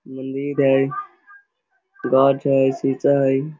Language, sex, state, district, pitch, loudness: Hindi, male, Jharkhand, Sahebganj, 140 Hz, -19 LUFS